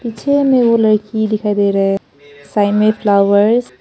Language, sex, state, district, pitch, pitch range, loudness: Hindi, female, Arunachal Pradesh, Papum Pare, 210 Hz, 200-225 Hz, -14 LUFS